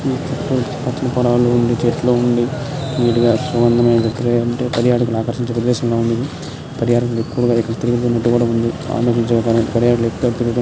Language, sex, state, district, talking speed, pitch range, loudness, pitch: Telugu, male, Andhra Pradesh, Srikakulam, 95 wpm, 115-125 Hz, -17 LUFS, 120 Hz